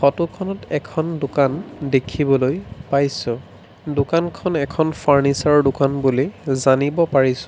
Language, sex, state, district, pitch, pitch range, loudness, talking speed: Assamese, male, Assam, Sonitpur, 140 Hz, 135-155 Hz, -19 LUFS, 110 wpm